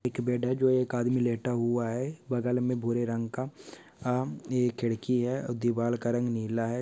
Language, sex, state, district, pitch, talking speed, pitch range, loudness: Hindi, male, Uttar Pradesh, Etah, 120 Hz, 210 wpm, 120-125 Hz, -30 LUFS